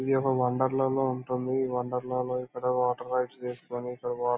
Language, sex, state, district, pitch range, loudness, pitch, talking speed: Telugu, male, Andhra Pradesh, Anantapur, 125-130 Hz, -29 LUFS, 125 Hz, 220 wpm